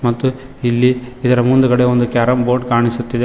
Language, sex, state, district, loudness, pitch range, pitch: Kannada, male, Karnataka, Koppal, -15 LUFS, 120-125 Hz, 125 Hz